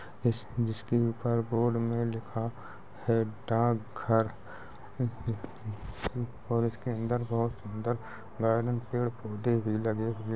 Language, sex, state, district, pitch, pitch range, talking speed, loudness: Hindi, male, Uttar Pradesh, Jalaun, 115 Hz, 110-120 Hz, 120 wpm, -32 LUFS